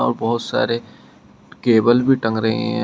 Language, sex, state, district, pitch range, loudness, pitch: Hindi, male, Uttar Pradesh, Shamli, 110-120 Hz, -18 LUFS, 115 Hz